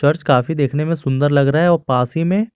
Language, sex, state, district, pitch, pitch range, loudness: Hindi, male, Jharkhand, Garhwa, 145 Hz, 140-165 Hz, -16 LUFS